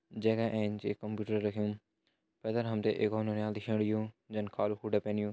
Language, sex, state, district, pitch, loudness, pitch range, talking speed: Hindi, male, Uttarakhand, Tehri Garhwal, 105 Hz, -34 LUFS, 105-110 Hz, 190 wpm